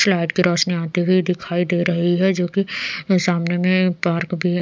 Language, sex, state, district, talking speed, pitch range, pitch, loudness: Hindi, female, Odisha, Sambalpur, 210 wpm, 175-185 Hz, 180 Hz, -19 LUFS